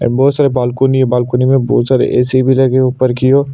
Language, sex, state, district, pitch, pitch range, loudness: Hindi, male, Chhattisgarh, Sukma, 130 Hz, 125-135 Hz, -12 LUFS